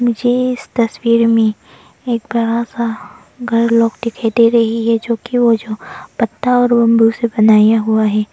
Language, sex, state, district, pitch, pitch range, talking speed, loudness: Hindi, female, Arunachal Pradesh, Longding, 230 Hz, 225-235 Hz, 175 wpm, -14 LUFS